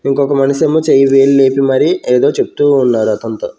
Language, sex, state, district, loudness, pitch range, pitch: Telugu, male, Andhra Pradesh, Sri Satya Sai, -11 LUFS, 135-140 Hz, 135 Hz